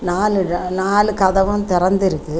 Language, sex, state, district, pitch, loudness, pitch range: Tamil, female, Tamil Nadu, Kanyakumari, 190 Hz, -17 LUFS, 180-200 Hz